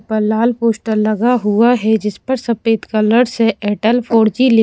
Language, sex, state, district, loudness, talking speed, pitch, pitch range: Hindi, female, Bihar, Katihar, -15 LUFS, 195 wpm, 225 Hz, 215-235 Hz